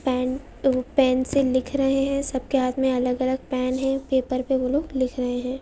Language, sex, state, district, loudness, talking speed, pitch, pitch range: Hindi, female, Andhra Pradesh, Visakhapatnam, -23 LUFS, 215 wpm, 260 Hz, 255-270 Hz